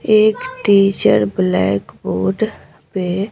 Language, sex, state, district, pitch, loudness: Hindi, female, Bihar, Patna, 165 Hz, -16 LUFS